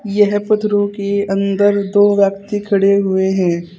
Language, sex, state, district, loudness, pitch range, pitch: Hindi, female, Uttar Pradesh, Saharanpur, -15 LUFS, 195-205 Hz, 200 Hz